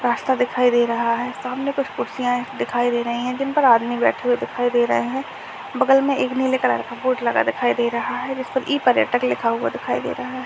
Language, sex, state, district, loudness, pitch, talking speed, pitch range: Hindi, male, Uttarakhand, Tehri Garhwal, -20 LUFS, 250 Hz, 230 wpm, 240-260 Hz